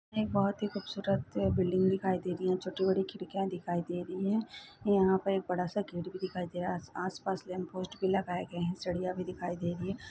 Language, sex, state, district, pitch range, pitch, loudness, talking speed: Hindi, female, Chhattisgarh, Sukma, 180-195 Hz, 185 Hz, -33 LUFS, 230 wpm